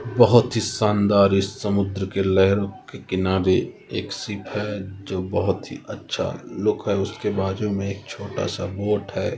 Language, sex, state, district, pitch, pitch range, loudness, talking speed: Hindi, male, Bihar, East Champaran, 100 Hz, 95-105 Hz, -23 LUFS, 165 wpm